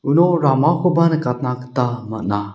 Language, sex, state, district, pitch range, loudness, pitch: Garo, male, Meghalaya, South Garo Hills, 120-165 Hz, -18 LUFS, 130 Hz